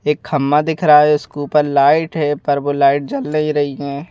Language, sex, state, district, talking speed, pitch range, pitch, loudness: Hindi, male, Madhya Pradesh, Bhopal, 235 wpm, 140-150 Hz, 145 Hz, -15 LUFS